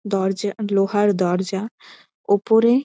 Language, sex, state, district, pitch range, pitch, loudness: Bengali, female, West Bengal, Malda, 195-220 Hz, 205 Hz, -20 LUFS